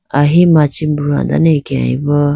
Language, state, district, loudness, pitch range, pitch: Idu Mishmi, Arunachal Pradesh, Lower Dibang Valley, -13 LUFS, 145-155 Hz, 145 Hz